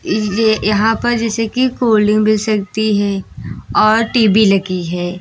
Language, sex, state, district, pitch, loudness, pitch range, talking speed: Hindi, female, Uttar Pradesh, Lucknow, 215 Hz, -14 LUFS, 205-225 Hz, 160 wpm